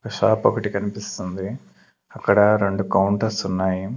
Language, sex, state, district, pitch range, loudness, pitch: Telugu, male, Andhra Pradesh, Sri Satya Sai, 95-105 Hz, -21 LUFS, 100 Hz